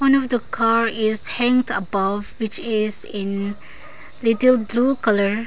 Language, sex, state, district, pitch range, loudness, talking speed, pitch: English, female, Arunachal Pradesh, Lower Dibang Valley, 205-245 Hz, -18 LUFS, 140 wpm, 225 Hz